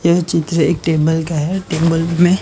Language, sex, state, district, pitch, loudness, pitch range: Hindi, male, Gujarat, Gandhinagar, 165 Hz, -16 LUFS, 160-170 Hz